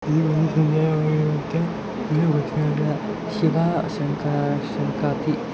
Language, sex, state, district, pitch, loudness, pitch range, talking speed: Kannada, male, Karnataka, Bellary, 155 Hz, -22 LUFS, 150-160 Hz, 75 wpm